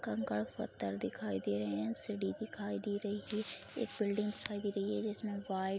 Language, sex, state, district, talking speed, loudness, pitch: Hindi, female, Bihar, Sitamarhi, 205 wpm, -38 LUFS, 200 Hz